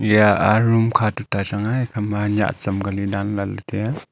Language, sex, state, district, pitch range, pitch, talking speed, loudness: Wancho, male, Arunachal Pradesh, Longding, 100-115 Hz, 105 Hz, 235 wpm, -20 LUFS